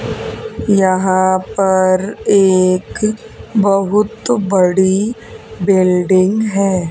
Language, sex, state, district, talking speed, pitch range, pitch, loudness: Hindi, female, Haryana, Charkhi Dadri, 60 wpm, 185-205 Hz, 190 Hz, -14 LUFS